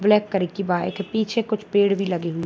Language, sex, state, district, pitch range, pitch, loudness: Hindi, male, Bihar, Bhagalpur, 180-210 Hz, 200 Hz, -22 LUFS